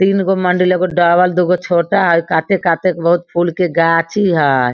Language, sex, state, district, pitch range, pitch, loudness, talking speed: Hindi, female, Bihar, Sitamarhi, 170-185 Hz, 175 Hz, -14 LUFS, 175 wpm